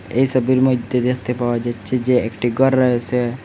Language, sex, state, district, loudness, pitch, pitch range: Bengali, male, Assam, Hailakandi, -18 LUFS, 125 Hz, 120-130 Hz